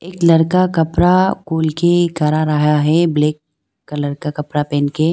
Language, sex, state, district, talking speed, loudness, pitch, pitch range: Hindi, female, Arunachal Pradesh, Lower Dibang Valley, 165 wpm, -15 LUFS, 155 Hz, 150-170 Hz